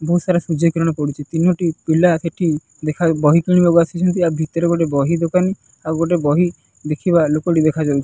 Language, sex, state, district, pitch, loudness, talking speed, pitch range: Odia, male, Odisha, Nuapada, 165 Hz, -17 LUFS, 170 wpm, 155-175 Hz